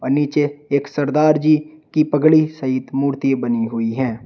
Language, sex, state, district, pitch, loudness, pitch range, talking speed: Hindi, male, Uttar Pradesh, Shamli, 145 Hz, -18 LUFS, 130-155 Hz, 155 wpm